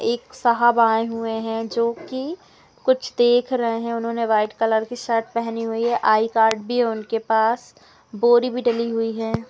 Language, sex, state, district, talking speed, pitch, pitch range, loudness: Hindi, female, Bihar, Jamui, 190 wpm, 230 Hz, 225-240 Hz, -21 LUFS